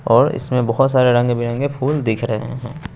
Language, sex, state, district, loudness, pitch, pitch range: Hindi, male, Bihar, West Champaran, -17 LUFS, 125 Hz, 120-135 Hz